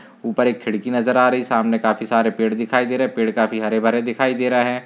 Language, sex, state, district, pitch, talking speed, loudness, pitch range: Hindi, male, Maharashtra, Nagpur, 120 Hz, 260 wpm, -19 LUFS, 110-125 Hz